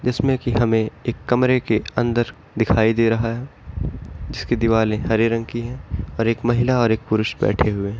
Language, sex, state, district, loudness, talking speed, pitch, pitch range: Hindi, male, Bihar, Kishanganj, -20 LUFS, 205 wpm, 115 Hz, 110-120 Hz